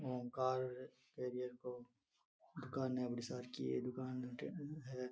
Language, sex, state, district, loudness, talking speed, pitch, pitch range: Marwari, male, Rajasthan, Nagaur, -45 LUFS, 130 wpm, 125 Hz, 125-130 Hz